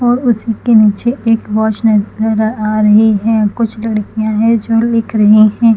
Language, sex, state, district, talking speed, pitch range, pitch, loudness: Hindi, female, Chhattisgarh, Bilaspur, 175 wpm, 215-230 Hz, 220 Hz, -12 LUFS